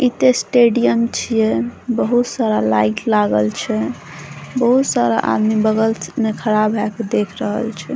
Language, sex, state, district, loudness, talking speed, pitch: Maithili, female, Bihar, Saharsa, -17 LUFS, 160 wpm, 215 Hz